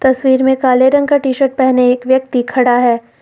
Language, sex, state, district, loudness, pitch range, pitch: Hindi, female, Uttar Pradesh, Lucknow, -12 LUFS, 250-265 Hz, 260 Hz